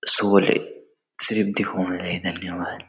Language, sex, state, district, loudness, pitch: Garhwali, male, Uttarakhand, Uttarkashi, -18 LUFS, 100 Hz